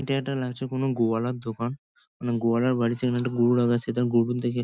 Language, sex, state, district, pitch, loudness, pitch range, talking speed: Bengali, male, West Bengal, Kolkata, 120 Hz, -26 LUFS, 120-125 Hz, 220 wpm